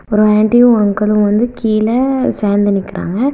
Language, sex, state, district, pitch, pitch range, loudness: Tamil, female, Tamil Nadu, Kanyakumari, 215 Hz, 205-240 Hz, -13 LUFS